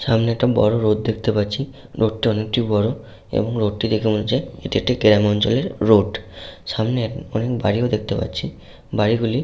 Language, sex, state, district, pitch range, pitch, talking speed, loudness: Bengali, male, West Bengal, Malda, 105-120 Hz, 110 Hz, 195 wpm, -20 LUFS